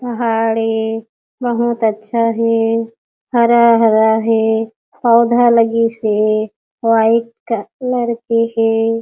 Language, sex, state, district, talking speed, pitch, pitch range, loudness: Chhattisgarhi, female, Chhattisgarh, Jashpur, 95 wpm, 230 Hz, 225-235 Hz, -15 LUFS